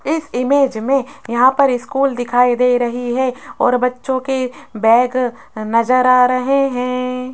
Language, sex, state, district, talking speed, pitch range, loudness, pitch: Hindi, female, Rajasthan, Jaipur, 145 wpm, 245-265 Hz, -16 LUFS, 250 Hz